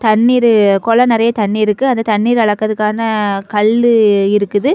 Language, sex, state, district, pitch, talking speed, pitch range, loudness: Tamil, female, Tamil Nadu, Kanyakumari, 215 Hz, 125 wpm, 210-230 Hz, -12 LUFS